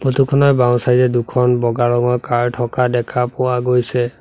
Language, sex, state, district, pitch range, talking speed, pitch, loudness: Assamese, male, Assam, Sonitpur, 120-125 Hz, 185 wpm, 125 Hz, -16 LUFS